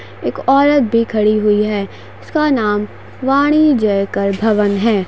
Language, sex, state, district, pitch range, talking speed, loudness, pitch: Hindi, female, Uttar Pradesh, Gorakhpur, 205-275 Hz, 140 wpm, -15 LUFS, 215 Hz